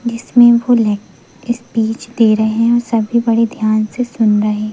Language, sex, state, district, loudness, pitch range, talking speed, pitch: Hindi, female, Madhya Pradesh, Umaria, -14 LUFS, 215-240 Hz, 175 wpm, 230 Hz